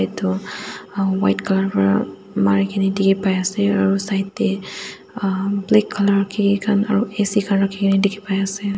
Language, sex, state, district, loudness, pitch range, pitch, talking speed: Nagamese, female, Nagaland, Dimapur, -19 LUFS, 195-200 Hz, 195 Hz, 145 wpm